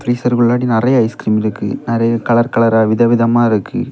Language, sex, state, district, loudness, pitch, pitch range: Tamil, male, Tamil Nadu, Kanyakumari, -14 LUFS, 115 Hz, 110-120 Hz